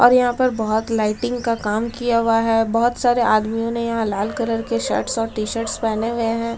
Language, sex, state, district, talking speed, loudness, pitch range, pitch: Hindi, female, Delhi, New Delhi, 220 wpm, -20 LUFS, 225-235 Hz, 230 Hz